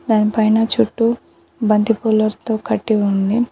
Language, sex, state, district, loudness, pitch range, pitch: Telugu, female, Telangana, Mahabubabad, -17 LUFS, 215-225 Hz, 220 Hz